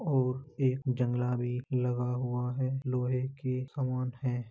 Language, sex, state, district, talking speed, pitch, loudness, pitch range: Hindi, male, Uttar Pradesh, Jalaun, 145 wpm, 125 Hz, -32 LUFS, 125-130 Hz